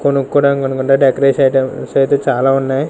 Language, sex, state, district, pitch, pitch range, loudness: Telugu, male, Andhra Pradesh, Sri Satya Sai, 135 Hz, 135-140 Hz, -13 LUFS